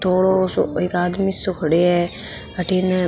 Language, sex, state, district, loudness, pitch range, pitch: Marwari, female, Rajasthan, Nagaur, -19 LUFS, 175-185 Hz, 185 Hz